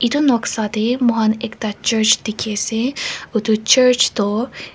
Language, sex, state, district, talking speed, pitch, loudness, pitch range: Nagamese, female, Nagaland, Kohima, 150 wpm, 225 Hz, -17 LUFS, 215-245 Hz